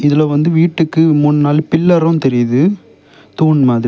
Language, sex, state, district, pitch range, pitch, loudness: Tamil, male, Tamil Nadu, Kanyakumari, 145-160 Hz, 155 Hz, -12 LUFS